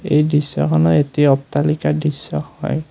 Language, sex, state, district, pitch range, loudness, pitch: Assamese, male, Assam, Kamrup Metropolitan, 140-150 Hz, -17 LUFS, 150 Hz